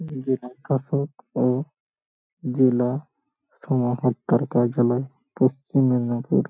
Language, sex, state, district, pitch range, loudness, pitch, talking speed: Bengali, male, West Bengal, Paschim Medinipur, 125-140 Hz, -23 LUFS, 130 Hz, 85 wpm